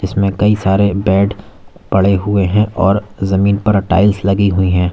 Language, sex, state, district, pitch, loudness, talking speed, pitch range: Hindi, male, Uttar Pradesh, Lalitpur, 100 Hz, -14 LUFS, 170 wpm, 95-100 Hz